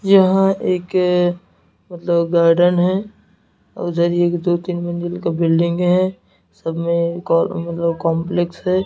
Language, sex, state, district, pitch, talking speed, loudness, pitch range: Hindi, male, Chhattisgarh, Narayanpur, 175 Hz, 135 wpm, -18 LUFS, 170-180 Hz